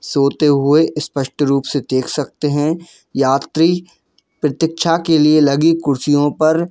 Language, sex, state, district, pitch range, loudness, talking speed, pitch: Hindi, male, Jharkhand, Jamtara, 140-160 Hz, -16 LUFS, 135 wpm, 150 Hz